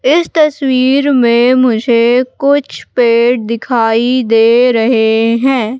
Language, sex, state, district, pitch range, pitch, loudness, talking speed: Hindi, female, Madhya Pradesh, Katni, 230-265 Hz, 245 Hz, -11 LUFS, 105 wpm